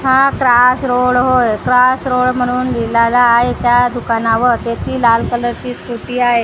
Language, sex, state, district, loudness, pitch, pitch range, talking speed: Marathi, female, Maharashtra, Gondia, -13 LUFS, 245 Hz, 235-250 Hz, 175 wpm